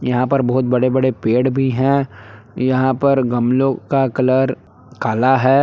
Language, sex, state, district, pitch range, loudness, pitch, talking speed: Hindi, male, Jharkhand, Palamu, 125-135 Hz, -16 LUFS, 130 Hz, 160 wpm